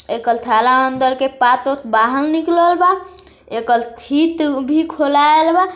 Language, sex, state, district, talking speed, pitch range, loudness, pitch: Hindi, female, Bihar, East Champaran, 125 wpm, 245-325 Hz, -15 LUFS, 280 Hz